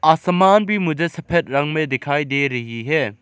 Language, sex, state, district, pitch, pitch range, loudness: Hindi, male, Arunachal Pradesh, Lower Dibang Valley, 155 Hz, 140-170 Hz, -18 LUFS